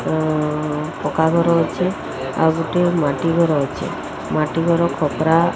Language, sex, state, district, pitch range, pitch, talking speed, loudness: Odia, female, Odisha, Sambalpur, 150-170 Hz, 160 Hz, 140 wpm, -19 LUFS